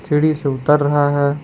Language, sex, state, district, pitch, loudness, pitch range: Hindi, male, Jharkhand, Palamu, 145 Hz, -16 LUFS, 145-150 Hz